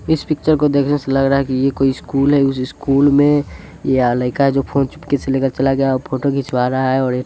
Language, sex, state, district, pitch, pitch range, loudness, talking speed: Hindi, male, Bihar, Sitamarhi, 135 Hz, 130-140 Hz, -16 LUFS, 275 wpm